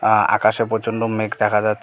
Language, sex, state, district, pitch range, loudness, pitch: Bengali, male, West Bengal, Cooch Behar, 105-115 Hz, -19 LUFS, 110 Hz